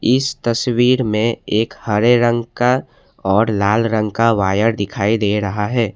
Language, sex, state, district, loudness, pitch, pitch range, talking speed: Hindi, male, Assam, Kamrup Metropolitan, -17 LUFS, 115 Hz, 105-120 Hz, 160 wpm